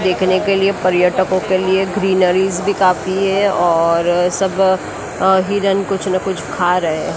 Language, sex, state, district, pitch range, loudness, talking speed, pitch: Hindi, female, Maharashtra, Mumbai Suburban, 180-195 Hz, -15 LUFS, 165 wpm, 190 Hz